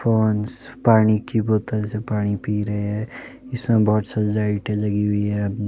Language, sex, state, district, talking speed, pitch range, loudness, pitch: Hindi, male, Himachal Pradesh, Shimla, 160 wpm, 105-110 Hz, -21 LUFS, 105 Hz